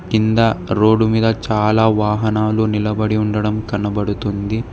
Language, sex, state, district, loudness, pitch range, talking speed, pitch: Telugu, male, Telangana, Hyderabad, -17 LUFS, 105-110 Hz, 100 wpm, 110 Hz